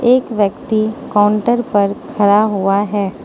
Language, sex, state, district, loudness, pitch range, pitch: Hindi, female, Mizoram, Aizawl, -15 LUFS, 205-230 Hz, 210 Hz